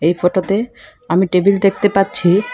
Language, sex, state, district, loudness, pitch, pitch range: Bengali, female, Assam, Hailakandi, -15 LUFS, 190 Hz, 180-200 Hz